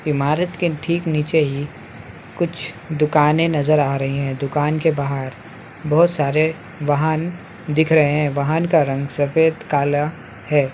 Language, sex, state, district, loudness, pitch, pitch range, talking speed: Hindi, male, Bihar, Muzaffarpur, -19 LUFS, 150 Hz, 140-160 Hz, 145 wpm